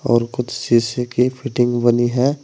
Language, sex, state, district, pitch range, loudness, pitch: Hindi, male, Uttar Pradesh, Saharanpur, 120-130 Hz, -18 LUFS, 120 Hz